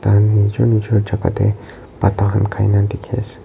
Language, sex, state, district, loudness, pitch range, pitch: Nagamese, male, Nagaland, Kohima, -17 LUFS, 100-105 Hz, 105 Hz